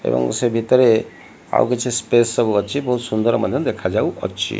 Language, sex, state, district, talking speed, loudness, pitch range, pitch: Odia, male, Odisha, Malkangiri, 155 wpm, -18 LUFS, 110-125 Hz, 120 Hz